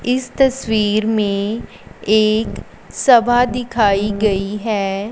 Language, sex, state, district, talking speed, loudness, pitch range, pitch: Hindi, female, Punjab, Fazilka, 95 wpm, -16 LUFS, 205-240 Hz, 215 Hz